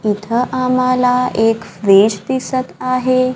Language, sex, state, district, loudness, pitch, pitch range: Marathi, female, Maharashtra, Gondia, -15 LUFS, 250 Hz, 220-255 Hz